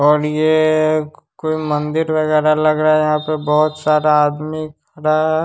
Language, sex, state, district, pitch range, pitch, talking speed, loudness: Hindi, male, Bihar, West Champaran, 150-155 Hz, 155 Hz, 165 wpm, -16 LUFS